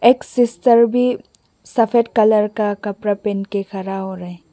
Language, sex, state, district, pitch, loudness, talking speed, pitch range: Hindi, female, Mizoram, Aizawl, 210 Hz, -17 LUFS, 170 wpm, 195-235 Hz